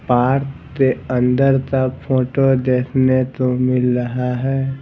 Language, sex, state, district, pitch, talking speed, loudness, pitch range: Hindi, male, Bihar, Patna, 130 Hz, 135 wpm, -17 LUFS, 125-135 Hz